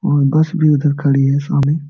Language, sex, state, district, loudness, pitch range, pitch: Hindi, male, Bihar, Jamui, -14 LUFS, 140-155 Hz, 145 Hz